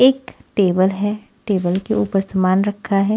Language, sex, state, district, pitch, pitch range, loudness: Hindi, female, Haryana, Rohtak, 200 Hz, 190-215 Hz, -18 LUFS